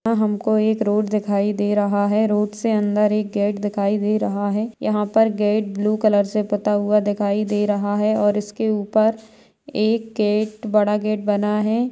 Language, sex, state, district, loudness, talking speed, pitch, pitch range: Hindi, female, Maharashtra, Solapur, -20 LUFS, 190 wpm, 210 Hz, 205-215 Hz